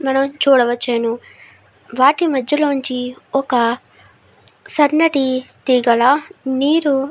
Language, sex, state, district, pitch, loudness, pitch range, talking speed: Telugu, female, Andhra Pradesh, Srikakulam, 270 Hz, -16 LUFS, 250-290 Hz, 85 wpm